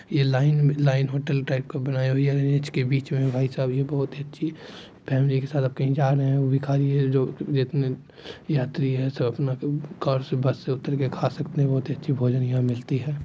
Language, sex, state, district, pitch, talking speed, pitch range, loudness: Hindi, male, Bihar, Supaul, 135 Hz, 195 wpm, 130-145 Hz, -24 LUFS